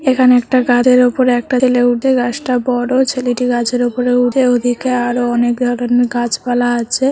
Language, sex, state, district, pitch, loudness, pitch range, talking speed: Bengali, female, West Bengal, Jhargram, 245 Hz, -14 LUFS, 245-255 Hz, 150 wpm